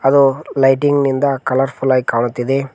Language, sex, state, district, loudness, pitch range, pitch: Kannada, male, Karnataka, Koppal, -15 LUFS, 130-140 Hz, 135 Hz